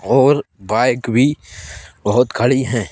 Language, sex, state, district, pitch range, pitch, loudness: Hindi, male, Madhya Pradesh, Bhopal, 95-130 Hz, 120 Hz, -16 LUFS